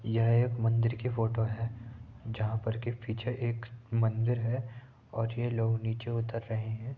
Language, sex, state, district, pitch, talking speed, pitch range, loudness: Hindi, male, Uttar Pradesh, Etah, 115 Hz, 180 wpm, 115-120 Hz, -32 LUFS